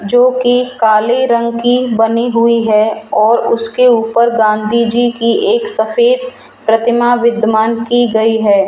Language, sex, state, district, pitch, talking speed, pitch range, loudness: Hindi, female, Rajasthan, Jaipur, 235 Hz, 130 wpm, 225-245 Hz, -12 LUFS